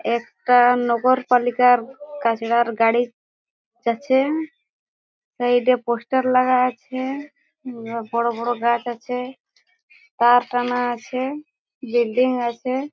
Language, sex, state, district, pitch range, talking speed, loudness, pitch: Bengali, female, West Bengal, Jhargram, 235-260 Hz, 95 wpm, -20 LUFS, 245 Hz